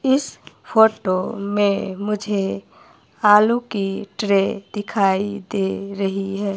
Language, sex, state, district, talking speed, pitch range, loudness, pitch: Hindi, female, Himachal Pradesh, Shimla, 100 wpm, 195-210 Hz, -20 LUFS, 200 Hz